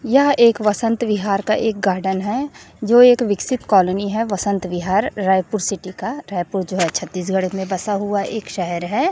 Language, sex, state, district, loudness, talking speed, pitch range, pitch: Hindi, female, Chhattisgarh, Raipur, -18 LUFS, 185 wpm, 190-225 Hz, 200 Hz